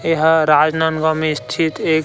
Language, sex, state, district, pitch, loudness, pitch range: Chhattisgarhi, male, Chhattisgarh, Rajnandgaon, 160 Hz, -16 LUFS, 155-160 Hz